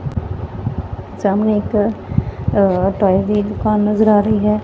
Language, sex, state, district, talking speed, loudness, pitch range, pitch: Punjabi, female, Punjab, Fazilka, 140 wpm, -17 LUFS, 190-210 Hz, 205 Hz